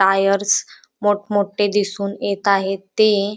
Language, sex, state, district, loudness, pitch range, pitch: Marathi, female, Maharashtra, Dhule, -19 LUFS, 195-205 Hz, 200 Hz